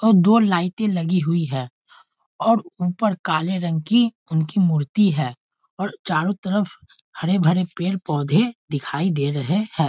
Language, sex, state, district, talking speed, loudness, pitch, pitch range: Hindi, male, Bihar, East Champaran, 140 wpm, -21 LUFS, 180 Hz, 160-205 Hz